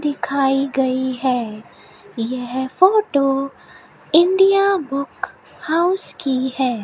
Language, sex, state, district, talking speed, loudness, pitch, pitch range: Hindi, female, Rajasthan, Bikaner, 90 wpm, -18 LUFS, 275 Hz, 255-335 Hz